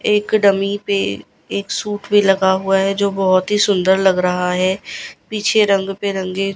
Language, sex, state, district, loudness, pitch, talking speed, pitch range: Hindi, female, Gujarat, Gandhinagar, -16 LUFS, 195 Hz, 175 wpm, 190-205 Hz